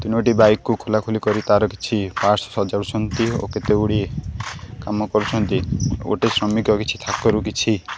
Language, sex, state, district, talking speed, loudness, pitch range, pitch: Odia, male, Odisha, Khordha, 135 wpm, -20 LUFS, 105-110 Hz, 105 Hz